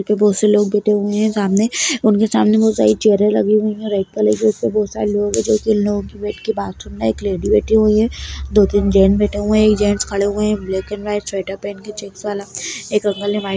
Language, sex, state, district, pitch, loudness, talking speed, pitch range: Kumaoni, female, Uttarakhand, Tehri Garhwal, 205 Hz, -16 LUFS, 215 wpm, 200-210 Hz